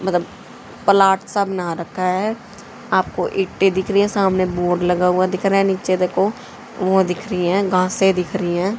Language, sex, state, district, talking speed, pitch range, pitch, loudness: Hindi, female, Haryana, Charkhi Dadri, 190 wpm, 185-200 Hz, 190 Hz, -18 LUFS